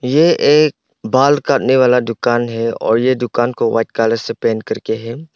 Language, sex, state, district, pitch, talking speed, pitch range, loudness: Hindi, male, Arunachal Pradesh, Longding, 120 Hz, 200 wpm, 115-130 Hz, -15 LUFS